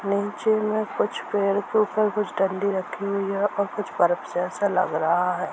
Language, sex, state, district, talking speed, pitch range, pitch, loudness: Hindi, female, Jharkhand, Sahebganj, 195 wpm, 185-205 Hz, 200 Hz, -24 LUFS